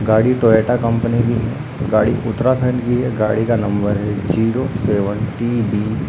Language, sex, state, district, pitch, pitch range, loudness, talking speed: Hindi, male, Uttarakhand, Uttarkashi, 115 Hz, 110-120 Hz, -17 LUFS, 165 wpm